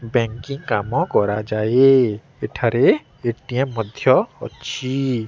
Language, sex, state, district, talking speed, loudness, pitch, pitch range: Odia, male, Odisha, Nuapada, 80 wpm, -19 LUFS, 125 Hz, 115-135 Hz